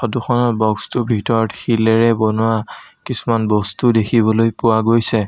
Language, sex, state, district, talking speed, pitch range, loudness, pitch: Assamese, male, Assam, Sonitpur, 135 wpm, 110-115 Hz, -16 LUFS, 115 Hz